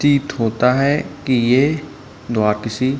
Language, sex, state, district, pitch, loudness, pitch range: Hindi, male, Uttar Pradesh, Budaun, 130 Hz, -18 LUFS, 115-140 Hz